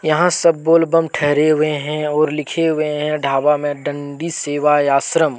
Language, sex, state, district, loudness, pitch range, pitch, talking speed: Hindi, male, Jharkhand, Deoghar, -17 LUFS, 145-160 Hz, 150 Hz, 180 wpm